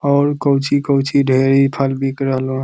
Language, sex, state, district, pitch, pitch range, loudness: Magahi, male, Bihar, Lakhisarai, 135 Hz, 135-140 Hz, -16 LUFS